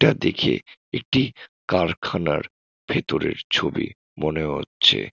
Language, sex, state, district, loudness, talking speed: Bengali, male, West Bengal, Jalpaiguri, -23 LUFS, 95 wpm